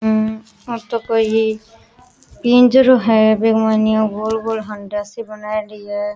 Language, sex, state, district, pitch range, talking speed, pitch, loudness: Rajasthani, female, Rajasthan, Nagaur, 215-230 Hz, 155 wpm, 220 Hz, -16 LUFS